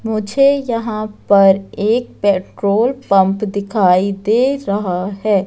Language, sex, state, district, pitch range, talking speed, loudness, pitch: Hindi, female, Madhya Pradesh, Katni, 195-230 Hz, 110 wpm, -15 LUFS, 205 Hz